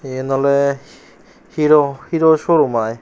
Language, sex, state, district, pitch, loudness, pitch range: Chakma, male, Tripura, Unakoti, 140 Hz, -15 LUFS, 135-155 Hz